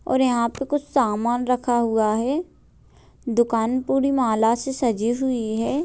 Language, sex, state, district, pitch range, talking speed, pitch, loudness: Hindi, male, Bihar, Gopalganj, 230-265 Hz, 155 wpm, 245 Hz, -22 LUFS